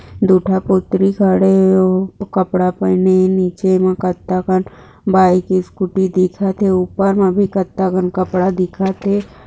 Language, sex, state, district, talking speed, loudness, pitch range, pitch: Hindi, female, Maharashtra, Chandrapur, 115 wpm, -15 LUFS, 185-190 Hz, 190 Hz